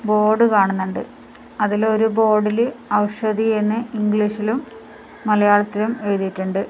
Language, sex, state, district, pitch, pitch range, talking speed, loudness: Malayalam, female, Kerala, Kasaragod, 215 Hz, 205-220 Hz, 90 wpm, -19 LUFS